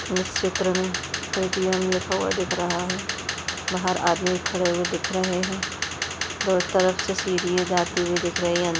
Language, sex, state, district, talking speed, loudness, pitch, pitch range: Hindi, female, Maharashtra, Solapur, 195 wpm, -24 LUFS, 180 Hz, 175-185 Hz